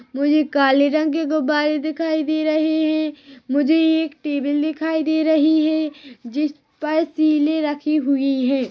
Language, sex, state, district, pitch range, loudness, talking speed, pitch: Hindi, female, Chhattisgarh, Rajnandgaon, 285-315 Hz, -19 LUFS, 160 wpm, 305 Hz